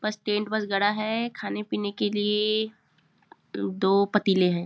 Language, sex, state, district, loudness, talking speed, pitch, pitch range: Hindi, female, Chhattisgarh, Bilaspur, -26 LUFS, 155 wpm, 210 Hz, 195-215 Hz